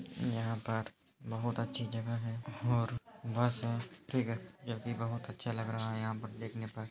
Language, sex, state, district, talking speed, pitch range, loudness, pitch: Hindi, male, Uttar Pradesh, Etah, 180 wpm, 115-120 Hz, -38 LUFS, 115 Hz